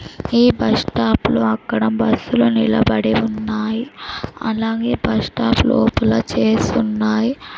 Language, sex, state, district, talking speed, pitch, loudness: Telugu, female, Andhra Pradesh, Sri Satya Sai, 95 wpm, 165 Hz, -17 LUFS